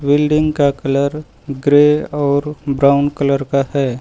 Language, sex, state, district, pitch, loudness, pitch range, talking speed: Hindi, male, Uttar Pradesh, Lucknow, 140 Hz, -15 LUFS, 140-150 Hz, 135 wpm